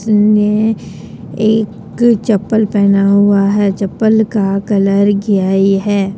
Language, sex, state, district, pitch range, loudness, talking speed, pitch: Hindi, female, Jharkhand, Deoghar, 195-215 Hz, -12 LUFS, 95 wpm, 205 Hz